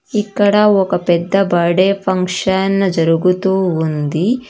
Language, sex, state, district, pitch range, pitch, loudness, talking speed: Telugu, female, Karnataka, Bangalore, 175-195 Hz, 190 Hz, -14 LUFS, 95 wpm